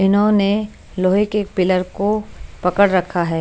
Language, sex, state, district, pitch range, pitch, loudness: Hindi, female, Chandigarh, Chandigarh, 185-210 Hz, 195 Hz, -18 LUFS